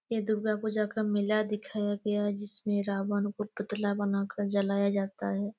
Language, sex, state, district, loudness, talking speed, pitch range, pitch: Hindi, female, Chhattisgarh, Raigarh, -31 LUFS, 180 wpm, 200-210 Hz, 205 Hz